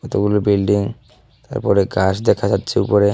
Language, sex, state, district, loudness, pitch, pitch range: Bengali, male, Tripura, Unakoti, -17 LUFS, 105 Hz, 100-120 Hz